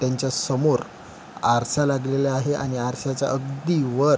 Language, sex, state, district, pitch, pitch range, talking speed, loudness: Marathi, male, Maharashtra, Pune, 135 Hz, 130-140 Hz, 130 wpm, -23 LUFS